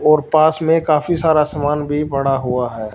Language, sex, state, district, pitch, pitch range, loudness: Hindi, male, Punjab, Fazilka, 150 Hz, 135-155 Hz, -16 LUFS